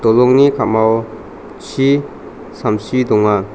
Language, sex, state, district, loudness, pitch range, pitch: Garo, male, Meghalaya, South Garo Hills, -14 LUFS, 110-130 Hz, 110 Hz